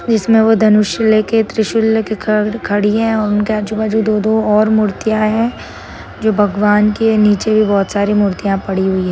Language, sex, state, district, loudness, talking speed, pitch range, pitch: Marathi, female, Maharashtra, Sindhudurg, -14 LUFS, 175 wpm, 205-220 Hz, 215 Hz